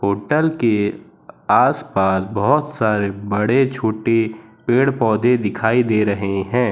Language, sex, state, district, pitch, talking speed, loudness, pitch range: Hindi, male, Gujarat, Valsad, 110 Hz, 115 wpm, -18 LUFS, 100-125 Hz